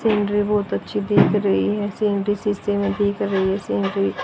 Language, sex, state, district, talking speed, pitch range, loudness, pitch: Hindi, female, Haryana, Jhajjar, 200 wpm, 195-205 Hz, -21 LUFS, 205 Hz